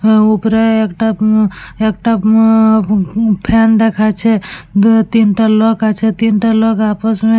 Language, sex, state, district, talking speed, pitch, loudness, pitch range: Bengali, female, West Bengal, Purulia, 130 wpm, 220 Hz, -12 LUFS, 215-225 Hz